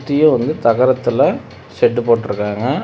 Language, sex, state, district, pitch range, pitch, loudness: Tamil, male, Tamil Nadu, Namakkal, 115-140 Hz, 125 Hz, -15 LUFS